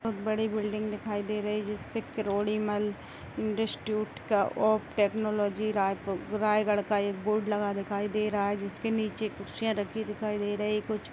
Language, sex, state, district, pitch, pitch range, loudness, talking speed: Hindi, female, Chhattisgarh, Raigarh, 210 Hz, 205-215 Hz, -30 LUFS, 175 wpm